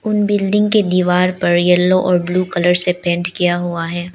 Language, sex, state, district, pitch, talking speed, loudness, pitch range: Hindi, female, Arunachal Pradesh, Lower Dibang Valley, 180 Hz, 200 wpm, -15 LUFS, 175-185 Hz